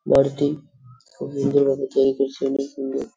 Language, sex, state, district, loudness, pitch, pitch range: Bengali, male, West Bengal, Purulia, -22 LUFS, 135 Hz, 135-140 Hz